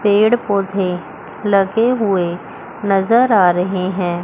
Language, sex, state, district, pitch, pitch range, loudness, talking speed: Hindi, female, Chandigarh, Chandigarh, 195 Hz, 180-210 Hz, -16 LUFS, 115 wpm